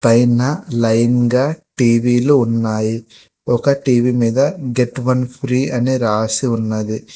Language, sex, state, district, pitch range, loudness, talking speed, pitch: Telugu, male, Telangana, Hyderabad, 115-130 Hz, -16 LUFS, 125 wpm, 120 Hz